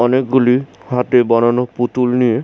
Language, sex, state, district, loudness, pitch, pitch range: Bengali, male, West Bengal, Jhargram, -15 LUFS, 125 Hz, 120-130 Hz